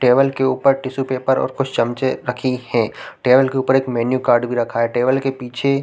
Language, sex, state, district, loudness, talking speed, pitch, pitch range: Hindi, male, Chhattisgarh, Raigarh, -18 LUFS, 225 wpm, 130 Hz, 125-135 Hz